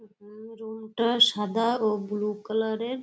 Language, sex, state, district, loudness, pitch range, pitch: Bengali, female, West Bengal, Kolkata, -25 LUFS, 210-230 Hz, 220 Hz